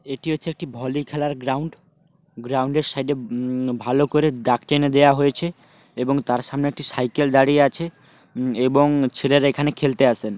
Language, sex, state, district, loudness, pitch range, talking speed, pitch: Bengali, male, West Bengal, Paschim Medinipur, -20 LUFS, 130-150 Hz, 160 wpm, 140 Hz